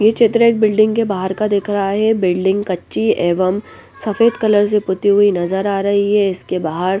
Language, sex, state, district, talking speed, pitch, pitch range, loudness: Hindi, female, Bihar, West Champaran, 215 wpm, 200 Hz, 190-215 Hz, -16 LUFS